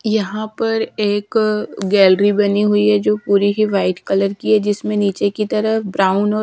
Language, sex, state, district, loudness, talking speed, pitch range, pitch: Hindi, female, Bihar, Patna, -16 LUFS, 185 wpm, 200-215 Hz, 205 Hz